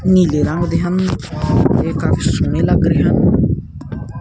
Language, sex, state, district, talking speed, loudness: Punjabi, male, Punjab, Kapurthala, 145 wpm, -15 LUFS